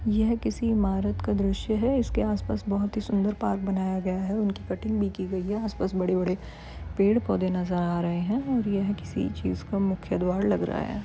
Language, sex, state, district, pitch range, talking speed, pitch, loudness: Hindi, female, Chhattisgarh, Bilaspur, 180-210 Hz, 205 wpm, 195 Hz, -27 LUFS